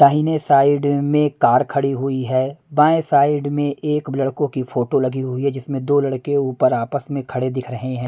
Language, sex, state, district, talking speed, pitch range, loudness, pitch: Hindi, male, Punjab, Pathankot, 215 wpm, 130-145 Hz, -19 LUFS, 140 Hz